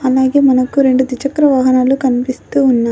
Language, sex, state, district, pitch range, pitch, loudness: Telugu, female, Telangana, Adilabad, 255-275 Hz, 260 Hz, -13 LUFS